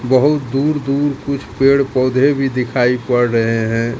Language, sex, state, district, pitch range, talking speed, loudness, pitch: Hindi, male, Bihar, Katihar, 125-140 Hz, 165 wpm, -16 LUFS, 130 Hz